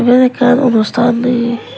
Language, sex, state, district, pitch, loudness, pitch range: Chakma, female, Tripura, West Tripura, 240 Hz, -12 LUFS, 235-250 Hz